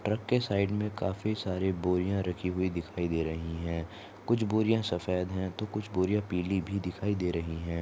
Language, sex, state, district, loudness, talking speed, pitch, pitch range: Hindi, female, Rajasthan, Nagaur, -31 LUFS, 200 wpm, 95 Hz, 90-105 Hz